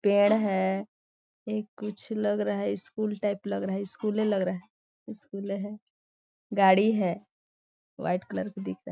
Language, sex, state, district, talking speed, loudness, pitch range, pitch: Hindi, female, Chhattisgarh, Sarguja, 175 wpm, -28 LUFS, 180-210 Hz, 200 Hz